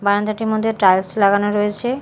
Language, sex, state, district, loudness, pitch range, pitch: Bengali, female, Odisha, Malkangiri, -17 LUFS, 200-220 Hz, 205 Hz